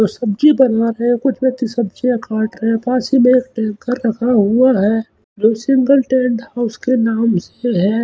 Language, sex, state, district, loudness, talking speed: Hindi, male, Chandigarh, Chandigarh, -15 LUFS, 200 wpm